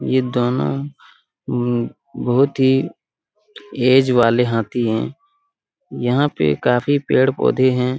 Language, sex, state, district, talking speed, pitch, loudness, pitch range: Hindi, male, Bihar, Araria, 105 wpm, 125 Hz, -18 LUFS, 120-140 Hz